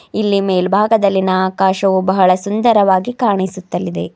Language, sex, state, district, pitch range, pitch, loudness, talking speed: Kannada, female, Karnataka, Bidar, 185-205 Hz, 190 Hz, -14 LUFS, 85 wpm